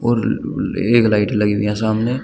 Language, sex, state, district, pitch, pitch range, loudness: Hindi, male, Uttar Pradesh, Shamli, 110 Hz, 105-120 Hz, -17 LUFS